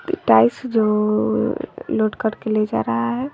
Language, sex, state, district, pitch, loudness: Hindi, female, Bihar, West Champaran, 215 Hz, -19 LUFS